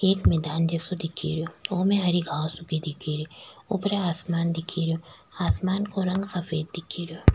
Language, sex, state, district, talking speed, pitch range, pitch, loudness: Rajasthani, female, Rajasthan, Nagaur, 170 wpm, 160-185 Hz, 170 Hz, -27 LUFS